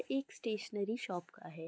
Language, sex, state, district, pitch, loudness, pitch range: Hindi, female, West Bengal, Jalpaiguri, 210 Hz, -40 LUFS, 180-235 Hz